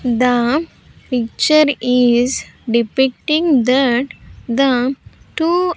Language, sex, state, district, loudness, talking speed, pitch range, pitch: English, female, Andhra Pradesh, Sri Satya Sai, -16 LUFS, 85 wpm, 245-300 Hz, 260 Hz